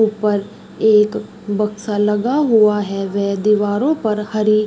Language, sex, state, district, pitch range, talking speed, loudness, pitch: Hindi, female, Uttar Pradesh, Varanasi, 205-215 Hz, 140 wpm, -17 LUFS, 210 Hz